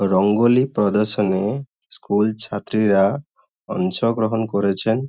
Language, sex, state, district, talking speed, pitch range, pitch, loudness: Bengali, male, West Bengal, Kolkata, 70 wpm, 100-120 Hz, 110 Hz, -19 LUFS